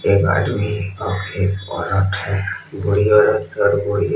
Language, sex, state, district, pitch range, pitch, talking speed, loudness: Hindi, male, Odisha, Sambalpur, 95-105 Hz, 100 Hz, 145 wpm, -18 LUFS